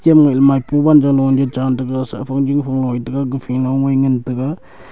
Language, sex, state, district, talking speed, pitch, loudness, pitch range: Wancho, male, Arunachal Pradesh, Longding, 220 wpm, 135 Hz, -15 LUFS, 130-140 Hz